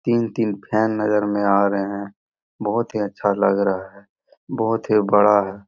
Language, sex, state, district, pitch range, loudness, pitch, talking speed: Hindi, male, Bihar, Darbhanga, 100-110 Hz, -20 LUFS, 105 Hz, 180 wpm